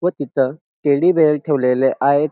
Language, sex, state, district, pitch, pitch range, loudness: Marathi, male, Maharashtra, Dhule, 145 Hz, 135-155 Hz, -17 LUFS